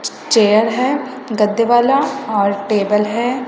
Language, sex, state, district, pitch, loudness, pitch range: Hindi, female, Chhattisgarh, Raipur, 230 Hz, -15 LUFS, 210-260 Hz